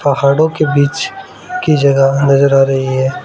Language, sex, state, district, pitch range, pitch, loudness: Hindi, male, Arunachal Pradesh, Lower Dibang Valley, 135-155 Hz, 140 Hz, -12 LUFS